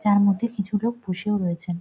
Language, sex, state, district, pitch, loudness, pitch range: Bengali, female, West Bengal, Jhargram, 200 Hz, -24 LUFS, 185-210 Hz